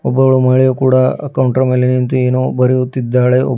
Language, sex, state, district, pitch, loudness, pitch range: Kannada, female, Karnataka, Bidar, 130 Hz, -13 LUFS, 125-130 Hz